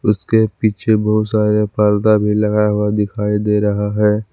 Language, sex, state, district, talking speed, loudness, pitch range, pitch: Hindi, male, Jharkhand, Palamu, 165 wpm, -15 LUFS, 105-110 Hz, 105 Hz